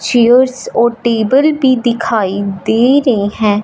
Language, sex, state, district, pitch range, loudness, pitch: Hindi, female, Punjab, Fazilka, 215-255 Hz, -12 LUFS, 235 Hz